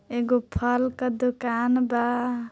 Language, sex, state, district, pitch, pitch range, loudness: Bhojpuri, female, Bihar, Gopalganj, 245 Hz, 240-250 Hz, -25 LUFS